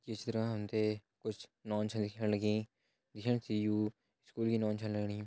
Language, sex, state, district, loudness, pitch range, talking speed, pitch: Hindi, male, Uttarakhand, Tehri Garhwal, -37 LUFS, 105-110 Hz, 205 wpm, 105 Hz